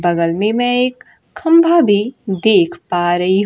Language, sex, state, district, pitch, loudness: Hindi, female, Bihar, Kaimur, 215 Hz, -14 LUFS